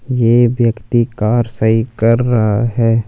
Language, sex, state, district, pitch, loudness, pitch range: Hindi, male, Punjab, Fazilka, 115 Hz, -14 LUFS, 110-120 Hz